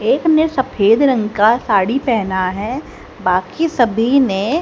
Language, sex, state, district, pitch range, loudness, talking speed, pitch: Hindi, female, Haryana, Charkhi Dadri, 200-270 Hz, -15 LUFS, 145 wpm, 230 Hz